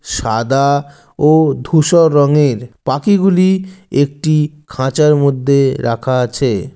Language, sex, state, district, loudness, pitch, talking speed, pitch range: Bengali, male, West Bengal, Jalpaiguri, -13 LUFS, 140 Hz, 100 wpm, 130-155 Hz